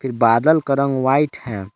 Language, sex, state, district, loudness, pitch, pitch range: Hindi, male, Jharkhand, Palamu, -17 LUFS, 130 Hz, 115-140 Hz